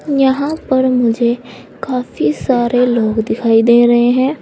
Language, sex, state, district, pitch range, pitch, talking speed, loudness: Hindi, female, Uttar Pradesh, Saharanpur, 235-260 Hz, 245 Hz, 135 wpm, -14 LUFS